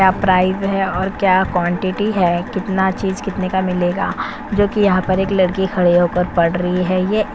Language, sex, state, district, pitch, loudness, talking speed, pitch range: Hindi, female, Chhattisgarh, Korba, 190 Hz, -17 LUFS, 190 wpm, 180-195 Hz